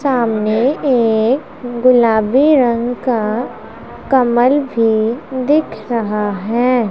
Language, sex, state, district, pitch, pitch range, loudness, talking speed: Hindi, female, Punjab, Pathankot, 240 Hz, 225-260 Hz, -15 LUFS, 85 wpm